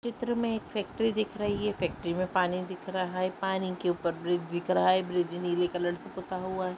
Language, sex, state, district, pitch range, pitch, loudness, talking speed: Hindi, female, Chhattisgarh, Rajnandgaon, 175-205 Hz, 185 Hz, -31 LUFS, 240 wpm